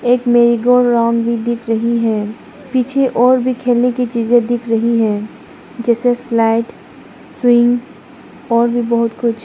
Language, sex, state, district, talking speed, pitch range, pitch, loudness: Hindi, female, Arunachal Pradesh, Lower Dibang Valley, 165 wpm, 230-245 Hz, 235 Hz, -15 LUFS